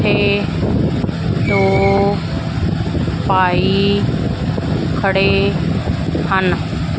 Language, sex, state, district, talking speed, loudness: Punjabi, female, Punjab, Fazilka, 45 wpm, -16 LUFS